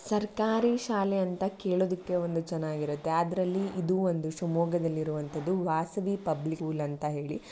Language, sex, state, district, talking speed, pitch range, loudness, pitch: Kannada, female, Karnataka, Shimoga, 130 wpm, 160-190 Hz, -30 LUFS, 175 Hz